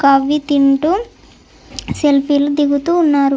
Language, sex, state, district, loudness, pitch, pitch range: Telugu, female, Andhra Pradesh, Chittoor, -14 LUFS, 285 Hz, 280-300 Hz